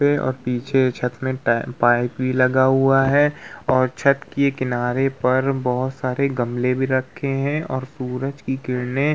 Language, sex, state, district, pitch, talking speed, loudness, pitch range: Hindi, male, Uttar Pradesh, Muzaffarnagar, 130 Hz, 170 wpm, -20 LUFS, 125-135 Hz